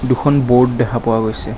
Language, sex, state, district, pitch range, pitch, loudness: Assamese, male, Assam, Kamrup Metropolitan, 115-125 Hz, 120 Hz, -14 LUFS